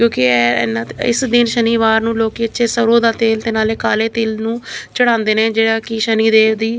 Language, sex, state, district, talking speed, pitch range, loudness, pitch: Punjabi, female, Chandigarh, Chandigarh, 220 wpm, 220-230 Hz, -15 LUFS, 225 Hz